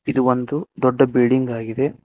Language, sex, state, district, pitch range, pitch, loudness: Kannada, male, Karnataka, Koppal, 125-140 Hz, 130 Hz, -19 LUFS